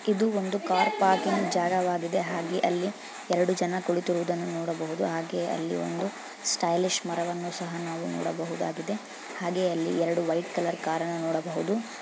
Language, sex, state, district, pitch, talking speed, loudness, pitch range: Kannada, female, Karnataka, Dharwad, 175 Hz, 130 wpm, -28 LUFS, 170-185 Hz